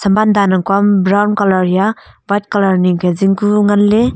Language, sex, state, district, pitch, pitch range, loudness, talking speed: Wancho, female, Arunachal Pradesh, Longding, 200 Hz, 190-205 Hz, -13 LUFS, 185 wpm